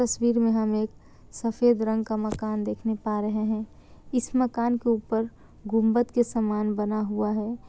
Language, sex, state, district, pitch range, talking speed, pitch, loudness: Hindi, female, Bihar, Kishanganj, 215-235 Hz, 170 wpm, 220 Hz, -26 LUFS